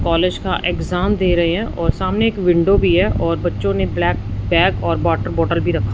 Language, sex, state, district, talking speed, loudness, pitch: Hindi, male, Punjab, Fazilka, 220 wpm, -17 LUFS, 170 Hz